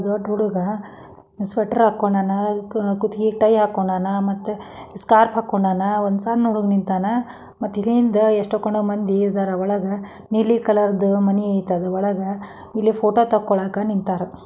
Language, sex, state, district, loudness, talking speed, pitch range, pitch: Kannada, female, Karnataka, Dharwad, -20 LUFS, 135 wpm, 200-215 Hz, 205 Hz